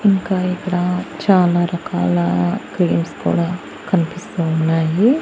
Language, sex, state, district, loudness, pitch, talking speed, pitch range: Telugu, female, Andhra Pradesh, Annamaya, -18 LUFS, 175 Hz, 90 wpm, 160-185 Hz